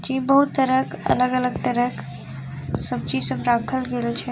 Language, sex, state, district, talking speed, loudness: Maithili, female, Bihar, Sitamarhi, 180 wpm, -20 LUFS